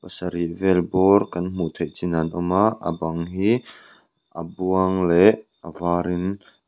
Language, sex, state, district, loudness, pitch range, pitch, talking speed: Mizo, male, Mizoram, Aizawl, -22 LUFS, 85-95 Hz, 90 Hz, 180 wpm